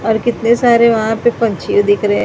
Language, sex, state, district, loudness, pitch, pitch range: Hindi, female, Maharashtra, Mumbai Suburban, -13 LUFS, 225 Hz, 205-235 Hz